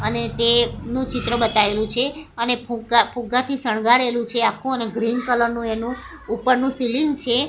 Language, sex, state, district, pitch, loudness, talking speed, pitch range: Gujarati, female, Gujarat, Gandhinagar, 240 Hz, -20 LUFS, 150 wpm, 230-255 Hz